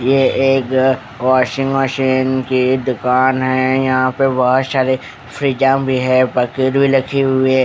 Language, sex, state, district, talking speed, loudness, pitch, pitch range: Hindi, male, Haryana, Charkhi Dadri, 125 wpm, -15 LUFS, 130 Hz, 130-135 Hz